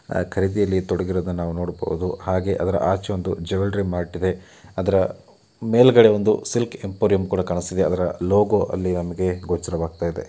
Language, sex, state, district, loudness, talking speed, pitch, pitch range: Kannada, male, Karnataka, Mysore, -21 LUFS, 135 wpm, 95 Hz, 90-100 Hz